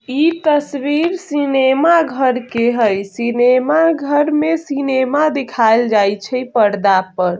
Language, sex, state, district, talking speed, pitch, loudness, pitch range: Bajjika, female, Bihar, Vaishali, 120 wpm, 265 Hz, -15 LUFS, 230-295 Hz